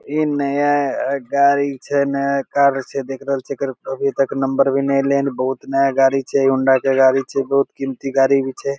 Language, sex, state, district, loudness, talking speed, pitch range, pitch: Maithili, male, Bihar, Begusarai, -18 LUFS, 210 wpm, 135-140 Hz, 135 Hz